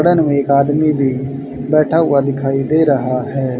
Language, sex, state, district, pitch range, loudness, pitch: Hindi, male, Haryana, Rohtak, 135-155 Hz, -15 LUFS, 140 Hz